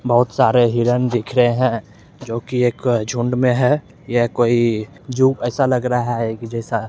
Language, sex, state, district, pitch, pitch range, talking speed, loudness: Hindi, male, Bihar, Begusarai, 120 Hz, 115-125 Hz, 190 wpm, -18 LUFS